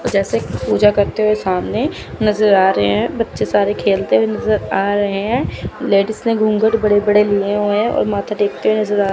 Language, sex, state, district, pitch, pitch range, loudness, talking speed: Hindi, female, Chandigarh, Chandigarh, 205 Hz, 200-215 Hz, -16 LUFS, 210 wpm